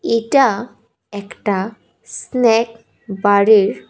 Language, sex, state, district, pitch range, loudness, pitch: Bengali, female, Tripura, West Tripura, 205-230 Hz, -16 LUFS, 220 Hz